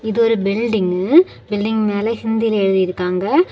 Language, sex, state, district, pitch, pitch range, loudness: Tamil, female, Tamil Nadu, Kanyakumari, 215 Hz, 195-225 Hz, -17 LUFS